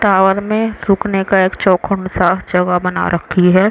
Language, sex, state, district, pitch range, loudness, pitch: Hindi, female, Chhattisgarh, Raigarh, 180-200 Hz, -14 LUFS, 190 Hz